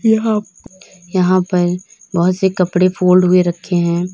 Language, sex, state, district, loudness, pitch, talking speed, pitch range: Hindi, female, Uttar Pradesh, Lalitpur, -15 LUFS, 185 Hz, 145 wpm, 180-190 Hz